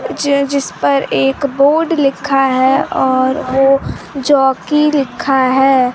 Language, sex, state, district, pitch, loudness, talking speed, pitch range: Hindi, female, Bihar, Kaimur, 270 Hz, -13 LUFS, 110 wpm, 265-280 Hz